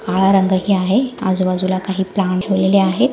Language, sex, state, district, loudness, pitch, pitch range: Marathi, female, Maharashtra, Aurangabad, -16 LUFS, 190 Hz, 185-195 Hz